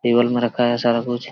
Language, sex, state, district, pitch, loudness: Hindi, male, Jharkhand, Sahebganj, 120 Hz, -19 LUFS